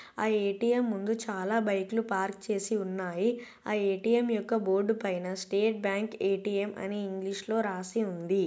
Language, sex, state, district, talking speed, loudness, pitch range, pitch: Telugu, female, Telangana, Nalgonda, 155 wpm, -31 LUFS, 195-225 Hz, 205 Hz